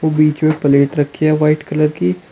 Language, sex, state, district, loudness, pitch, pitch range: Hindi, male, Uttar Pradesh, Shamli, -15 LUFS, 150 Hz, 145-155 Hz